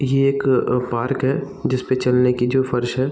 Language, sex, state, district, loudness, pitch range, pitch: Hindi, male, Bihar, East Champaran, -19 LUFS, 125-135 Hz, 130 Hz